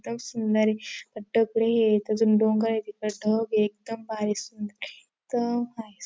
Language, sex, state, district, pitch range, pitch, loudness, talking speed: Marathi, female, Maharashtra, Dhule, 215-225 Hz, 220 Hz, -26 LUFS, 130 wpm